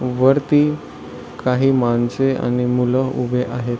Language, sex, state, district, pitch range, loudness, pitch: Marathi, male, Maharashtra, Solapur, 125-135 Hz, -18 LUFS, 125 Hz